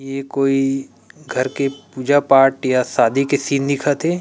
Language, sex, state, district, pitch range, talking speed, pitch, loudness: Chhattisgarhi, male, Chhattisgarh, Rajnandgaon, 135-140 Hz, 170 wpm, 135 Hz, -18 LUFS